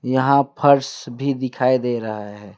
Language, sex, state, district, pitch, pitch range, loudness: Hindi, male, West Bengal, Alipurduar, 130 Hz, 120-140 Hz, -19 LUFS